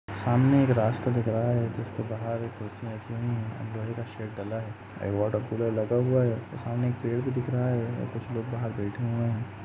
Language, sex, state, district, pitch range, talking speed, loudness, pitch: Hindi, male, Uttar Pradesh, Jalaun, 110-120 Hz, 235 wpm, -29 LUFS, 115 Hz